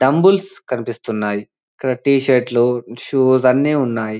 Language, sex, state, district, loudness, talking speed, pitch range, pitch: Telugu, male, Telangana, Karimnagar, -17 LUFS, 115 wpm, 120-135 Hz, 125 Hz